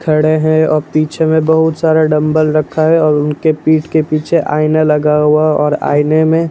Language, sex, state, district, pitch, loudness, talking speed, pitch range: Hindi, male, Bihar, Patna, 155 Hz, -12 LUFS, 205 wpm, 150-160 Hz